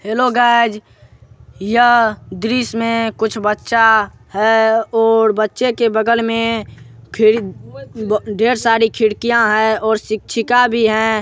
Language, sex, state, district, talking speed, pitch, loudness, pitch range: Hindi, male, Bihar, Supaul, 120 wpm, 220 Hz, -15 LUFS, 210-230 Hz